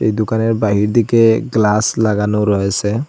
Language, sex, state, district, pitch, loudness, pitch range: Bengali, male, Assam, Hailakandi, 110 Hz, -15 LUFS, 105-115 Hz